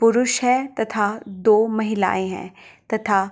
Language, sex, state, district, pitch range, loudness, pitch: Hindi, female, Bihar, Gopalganj, 195-230 Hz, -20 LUFS, 220 Hz